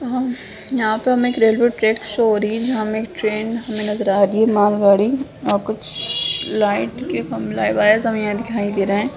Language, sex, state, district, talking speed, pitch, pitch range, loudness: Hindi, female, Bihar, Jamui, 195 wpm, 220 Hz, 210-230 Hz, -18 LUFS